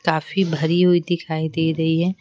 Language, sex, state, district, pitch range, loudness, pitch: Hindi, female, Bihar, Patna, 160-175 Hz, -20 LUFS, 165 Hz